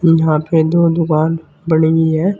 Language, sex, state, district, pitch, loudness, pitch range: Hindi, male, Uttar Pradesh, Saharanpur, 160 Hz, -14 LUFS, 160-165 Hz